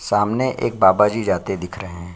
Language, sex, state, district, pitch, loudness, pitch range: Hindi, male, Bihar, Bhagalpur, 95 Hz, -19 LUFS, 90-105 Hz